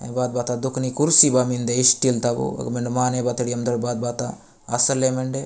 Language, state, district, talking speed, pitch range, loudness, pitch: Gondi, Chhattisgarh, Sukma, 220 wpm, 120-130 Hz, -20 LUFS, 125 Hz